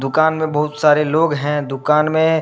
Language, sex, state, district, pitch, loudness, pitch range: Hindi, male, Jharkhand, Deoghar, 150 Hz, -16 LUFS, 150-155 Hz